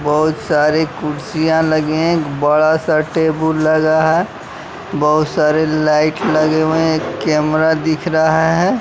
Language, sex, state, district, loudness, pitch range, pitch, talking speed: Hindi, male, Bihar, West Champaran, -15 LUFS, 155-160 Hz, 155 Hz, 135 wpm